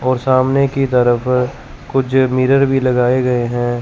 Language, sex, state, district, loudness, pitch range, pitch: Hindi, male, Chandigarh, Chandigarh, -15 LUFS, 125-135 Hz, 130 Hz